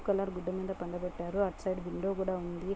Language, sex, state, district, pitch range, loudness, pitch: Telugu, female, Andhra Pradesh, Guntur, 175-195 Hz, -35 LUFS, 185 Hz